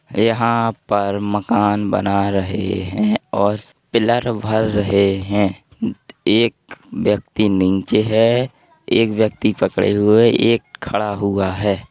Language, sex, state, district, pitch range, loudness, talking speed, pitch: Hindi, male, Uttar Pradesh, Hamirpur, 100-115 Hz, -18 LUFS, 120 wpm, 105 Hz